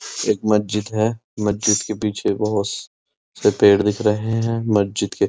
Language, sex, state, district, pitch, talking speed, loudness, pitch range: Hindi, male, Uttar Pradesh, Muzaffarnagar, 105 Hz, 170 wpm, -19 LUFS, 105-110 Hz